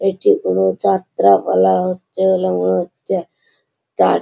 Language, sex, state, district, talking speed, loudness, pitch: Bengali, male, West Bengal, Malda, 115 wpm, -16 LUFS, 95 Hz